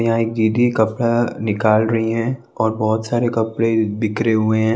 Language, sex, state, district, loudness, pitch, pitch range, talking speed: Hindi, male, Odisha, Sambalpur, -18 LUFS, 115 Hz, 110-115 Hz, 175 wpm